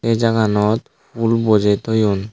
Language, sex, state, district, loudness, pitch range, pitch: Chakma, male, Tripura, Dhalai, -17 LUFS, 105-115 Hz, 110 Hz